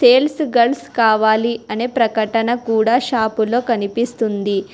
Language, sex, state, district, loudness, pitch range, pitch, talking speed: Telugu, female, Telangana, Hyderabad, -17 LUFS, 220-245 Hz, 230 Hz, 100 wpm